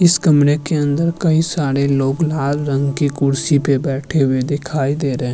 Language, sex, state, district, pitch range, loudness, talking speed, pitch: Hindi, male, Uttarakhand, Tehri Garhwal, 135-155 Hz, -17 LUFS, 190 wpm, 145 Hz